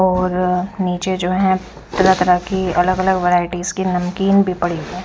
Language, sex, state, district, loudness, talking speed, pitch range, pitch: Hindi, female, Haryana, Rohtak, -17 LUFS, 180 wpm, 180-190 Hz, 185 Hz